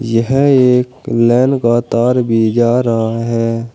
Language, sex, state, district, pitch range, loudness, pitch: Hindi, male, Uttar Pradesh, Saharanpur, 115-125 Hz, -13 LUFS, 120 Hz